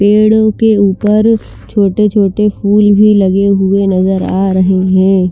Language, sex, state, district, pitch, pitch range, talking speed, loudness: Hindi, female, Chandigarh, Chandigarh, 200 Hz, 190-210 Hz, 145 wpm, -10 LUFS